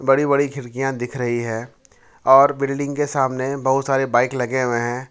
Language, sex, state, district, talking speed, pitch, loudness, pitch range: Hindi, male, Jharkhand, Ranchi, 190 wpm, 130 Hz, -19 LUFS, 120-140 Hz